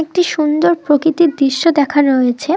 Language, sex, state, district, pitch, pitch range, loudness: Bengali, female, West Bengal, Dakshin Dinajpur, 305 Hz, 285-335 Hz, -13 LUFS